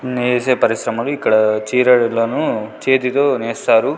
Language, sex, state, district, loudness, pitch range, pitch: Telugu, male, Andhra Pradesh, Sri Satya Sai, -16 LUFS, 115-130 Hz, 125 Hz